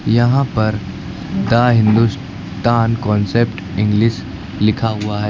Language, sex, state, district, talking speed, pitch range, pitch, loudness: Hindi, male, Uttar Pradesh, Lucknow, 100 wpm, 105-115 Hz, 110 Hz, -16 LUFS